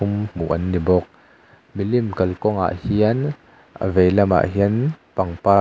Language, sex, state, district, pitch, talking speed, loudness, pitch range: Mizo, male, Mizoram, Aizawl, 100 Hz, 130 wpm, -20 LUFS, 90-105 Hz